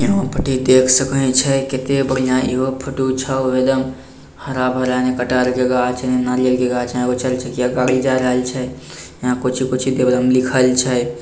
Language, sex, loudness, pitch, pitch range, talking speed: Bhojpuri, male, -17 LUFS, 130 Hz, 125-130 Hz, 130 wpm